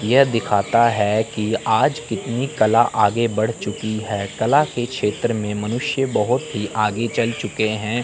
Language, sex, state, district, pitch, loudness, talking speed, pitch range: Hindi, male, Chandigarh, Chandigarh, 115 Hz, -20 LUFS, 165 wpm, 105-120 Hz